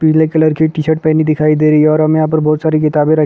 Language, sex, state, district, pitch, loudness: Hindi, male, Chhattisgarh, Kabirdham, 155 Hz, -12 LUFS